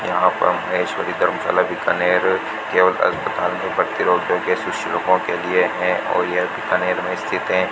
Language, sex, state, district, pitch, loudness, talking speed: Hindi, male, Rajasthan, Bikaner, 90 Hz, -19 LUFS, 165 wpm